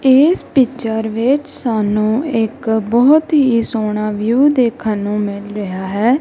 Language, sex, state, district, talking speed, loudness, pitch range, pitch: Punjabi, female, Punjab, Kapurthala, 135 wpm, -15 LUFS, 215-265 Hz, 225 Hz